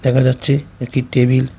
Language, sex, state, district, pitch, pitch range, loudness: Bengali, male, Tripura, West Tripura, 130 Hz, 125-135 Hz, -17 LUFS